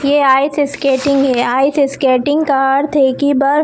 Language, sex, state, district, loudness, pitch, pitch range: Hindi, female, Chhattisgarh, Bilaspur, -13 LUFS, 275 Hz, 270-285 Hz